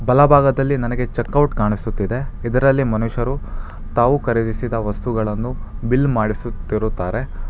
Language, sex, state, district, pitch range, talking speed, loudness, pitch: Kannada, male, Karnataka, Bangalore, 110-130 Hz, 95 wpm, -19 LUFS, 120 Hz